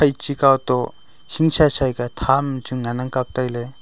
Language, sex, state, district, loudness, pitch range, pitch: Wancho, male, Arunachal Pradesh, Longding, -20 LUFS, 125-140 Hz, 130 Hz